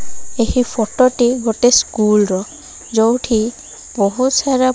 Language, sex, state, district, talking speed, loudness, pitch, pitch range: Odia, female, Odisha, Malkangiri, 125 wpm, -15 LUFS, 240 Hz, 220-255 Hz